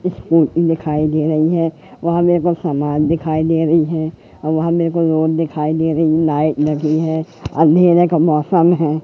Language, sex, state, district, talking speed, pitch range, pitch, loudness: Hindi, male, Madhya Pradesh, Katni, 190 wpm, 155-165 Hz, 160 Hz, -15 LUFS